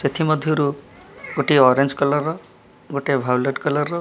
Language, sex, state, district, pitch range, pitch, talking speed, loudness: Odia, male, Odisha, Malkangiri, 130-150 Hz, 140 Hz, 180 wpm, -20 LUFS